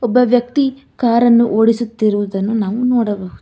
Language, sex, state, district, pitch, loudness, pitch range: Kannada, female, Karnataka, Bangalore, 235 Hz, -15 LUFS, 215-245 Hz